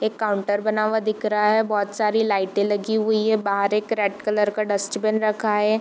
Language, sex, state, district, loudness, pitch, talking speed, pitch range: Hindi, female, Bihar, East Champaran, -22 LUFS, 215 Hz, 215 wpm, 205-215 Hz